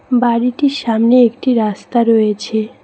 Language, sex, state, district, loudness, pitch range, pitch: Bengali, female, West Bengal, Cooch Behar, -14 LUFS, 220-245 Hz, 235 Hz